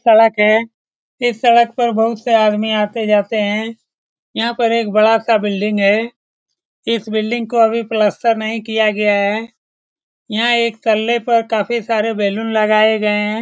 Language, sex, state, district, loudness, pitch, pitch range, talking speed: Hindi, male, Bihar, Saran, -15 LUFS, 220 Hz, 215-230 Hz, 155 wpm